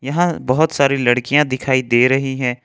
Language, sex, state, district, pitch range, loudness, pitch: Hindi, male, Jharkhand, Ranchi, 125-140 Hz, -16 LUFS, 135 Hz